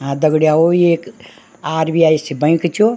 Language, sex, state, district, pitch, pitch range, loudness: Garhwali, female, Uttarakhand, Tehri Garhwal, 160 Hz, 155-170 Hz, -14 LUFS